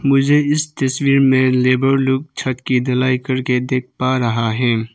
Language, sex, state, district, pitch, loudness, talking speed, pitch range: Hindi, male, Arunachal Pradesh, Papum Pare, 130 Hz, -16 LUFS, 170 wpm, 125-135 Hz